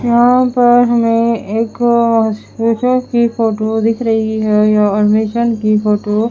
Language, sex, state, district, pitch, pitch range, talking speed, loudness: Hindi, female, Haryana, Charkhi Dadri, 230 Hz, 215-235 Hz, 125 wpm, -13 LUFS